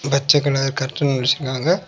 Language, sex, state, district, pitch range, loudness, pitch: Tamil, male, Tamil Nadu, Kanyakumari, 130-145 Hz, -19 LUFS, 140 Hz